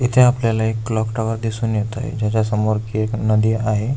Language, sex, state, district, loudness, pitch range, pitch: Marathi, male, Maharashtra, Aurangabad, -19 LUFS, 110-115 Hz, 110 Hz